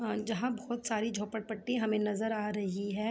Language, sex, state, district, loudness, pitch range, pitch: Hindi, female, Jharkhand, Sahebganj, -34 LUFS, 210-225 Hz, 220 Hz